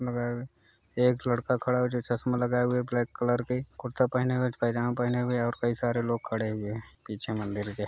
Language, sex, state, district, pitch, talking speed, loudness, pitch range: Hindi, male, Bihar, Gaya, 120 Hz, 220 wpm, -29 LUFS, 115-125 Hz